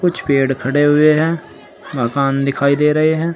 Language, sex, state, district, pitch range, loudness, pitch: Hindi, male, Uttar Pradesh, Saharanpur, 135-155 Hz, -15 LUFS, 145 Hz